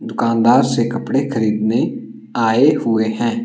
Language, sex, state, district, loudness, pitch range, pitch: Hindi, male, Himachal Pradesh, Shimla, -16 LUFS, 110-125 Hz, 115 Hz